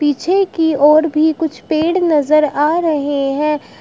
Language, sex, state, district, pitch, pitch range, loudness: Hindi, female, Uttar Pradesh, Shamli, 305 Hz, 295-320 Hz, -14 LUFS